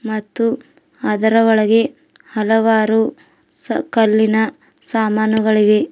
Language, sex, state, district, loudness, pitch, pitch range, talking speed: Kannada, female, Karnataka, Bidar, -16 LUFS, 220 Hz, 220-230 Hz, 60 wpm